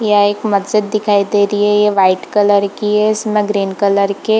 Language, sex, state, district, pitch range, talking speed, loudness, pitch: Hindi, female, Bihar, Purnia, 200-210 Hz, 215 wpm, -14 LUFS, 205 Hz